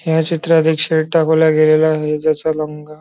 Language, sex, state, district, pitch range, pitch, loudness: Marathi, male, Maharashtra, Nagpur, 155-160 Hz, 160 Hz, -14 LUFS